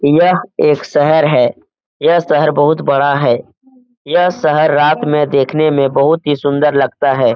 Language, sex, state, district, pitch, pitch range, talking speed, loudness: Hindi, male, Bihar, Lakhisarai, 150 Hz, 145-160 Hz, 165 wpm, -12 LUFS